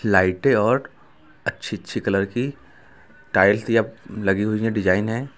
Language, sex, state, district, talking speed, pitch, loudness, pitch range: Hindi, male, Uttar Pradesh, Lucknow, 135 wpm, 105 Hz, -21 LUFS, 95-115 Hz